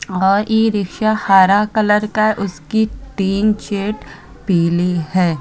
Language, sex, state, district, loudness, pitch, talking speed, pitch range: Hindi, female, Uttar Pradesh, Hamirpur, -16 LUFS, 200 Hz, 135 wpm, 185-215 Hz